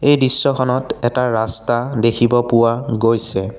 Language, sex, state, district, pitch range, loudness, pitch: Assamese, male, Assam, Sonitpur, 115-125 Hz, -16 LUFS, 120 Hz